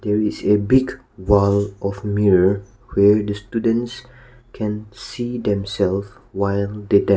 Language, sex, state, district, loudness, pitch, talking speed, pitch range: English, male, Nagaland, Kohima, -20 LUFS, 105 Hz, 125 wpm, 100-115 Hz